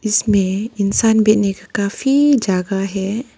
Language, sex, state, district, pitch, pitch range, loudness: Hindi, female, Arunachal Pradesh, Lower Dibang Valley, 205 Hz, 195-225 Hz, -16 LUFS